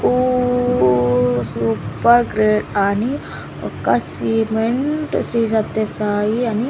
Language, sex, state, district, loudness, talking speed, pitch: Telugu, female, Andhra Pradesh, Sri Satya Sai, -18 LUFS, 100 wpm, 215 Hz